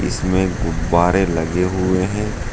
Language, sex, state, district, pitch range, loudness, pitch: Hindi, male, Uttar Pradesh, Saharanpur, 85-95 Hz, -18 LUFS, 90 Hz